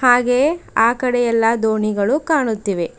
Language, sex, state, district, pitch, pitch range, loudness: Kannada, female, Karnataka, Bidar, 235 Hz, 220-255 Hz, -17 LUFS